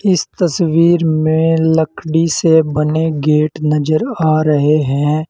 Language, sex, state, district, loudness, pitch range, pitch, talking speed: Hindi, male, Uttar Pradesh, Saharanpur, -14 LUFS, 150-165 Hz, 155 Hz, 125 wpm